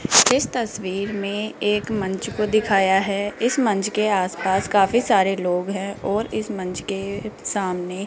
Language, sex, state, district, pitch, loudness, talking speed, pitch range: Hindi, female, Rajasthan, Jaipur, 200 Hz, -21 LUFS, 170 wpm, 190-215 Hz